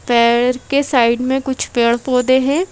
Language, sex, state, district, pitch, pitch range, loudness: Hindi, female, Madhya Pradesh, Bhopal, 255 Hz, 240-265 Hz, -15 LUFS